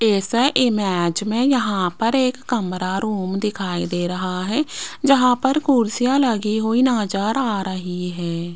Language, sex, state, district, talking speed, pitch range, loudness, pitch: Hindi, female, Rajasthan, Jaipur, 140 wpm, 185-250 Hz, -20 LUFS, 210 Hz